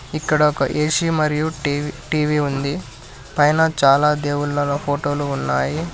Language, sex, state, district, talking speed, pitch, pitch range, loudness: Telugu, male, Telangana, Hyderabad, 110 wpm, 145 Hz, 140-155 Hz, -19 LUFS